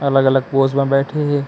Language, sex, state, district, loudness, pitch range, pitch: Chhattisgarhi, male, Chhattisgarh, Kabirdham, -16 LUFS, 135-140 Hz, 135 Hz